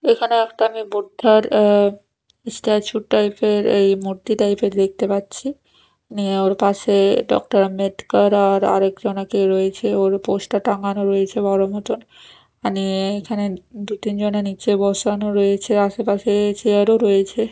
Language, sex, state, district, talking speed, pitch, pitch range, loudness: Bengali, female, Odisha, Nuapada, 135 wpm, 205 Hz, 195-215 Hz, -18 LUFS